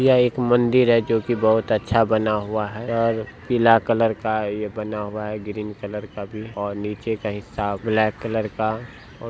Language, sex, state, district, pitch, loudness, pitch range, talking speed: Hindi, male, Bihar, Saharsa, 110 Hz, -22 LUFS, 105-115 Hz, 205 wpm